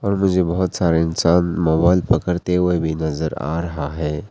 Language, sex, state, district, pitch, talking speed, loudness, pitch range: Hindi, male, Arunachal Pradesh, Papum Pare, 85 Hz, 165 wpm, -19 LUFS, 80-90 Hz